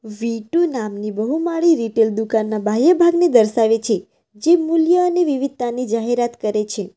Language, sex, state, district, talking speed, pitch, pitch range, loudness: Gujarati, female, Gujarat, Valsad, 155 wpm, 235 Hz, 215-325 Hz, -18 LUFS